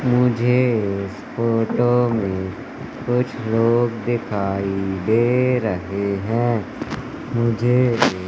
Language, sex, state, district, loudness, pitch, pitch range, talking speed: Hindi, male, Madhya Pradesh, Katni, -20 LUFS, 115 Hz, 100-120 Hz, 80 wpm